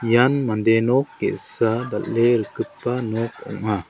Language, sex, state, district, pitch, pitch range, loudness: Garo, male, Meghalaya, South Garo Hills, 115 Hz, 110-120 Hz, -21 LUFS